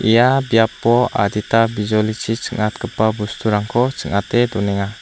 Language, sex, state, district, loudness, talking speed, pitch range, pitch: Garo, female, Meghalaya, South Garo Hills, -18 LUFS, 95 wpm, 105-120 Hz, 110 Hz